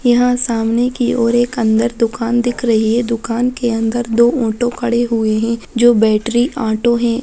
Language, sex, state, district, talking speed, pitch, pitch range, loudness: Hindi, female, Bihar, Samastipur, 180 wpm, 235 Hz, 230-240 Hz, -15 LUFS